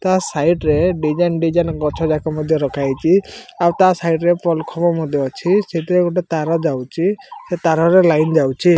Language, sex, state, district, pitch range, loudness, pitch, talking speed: Odia, male, Odisha, Malkangiri, 155-175 Hz, -17 LUFS, 165 Hz, 170 wpm